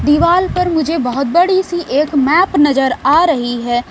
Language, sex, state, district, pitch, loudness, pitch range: Hindi, female, Bihar, West Champaran, 300 Hz, -13 LUFS, 270-345 Hz